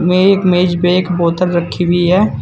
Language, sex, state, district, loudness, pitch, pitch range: Hindi, male, Uttar Pradesh, Saharanpur, -13 LUFS, 180 Hz, 175-185 Hz